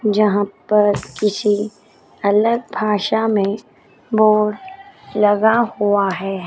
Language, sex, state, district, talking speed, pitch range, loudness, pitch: Hindi, female, Chandigarh, Chandigarh, 95 wpm, 205-220 Hz, -17 LUFS, 210 Hz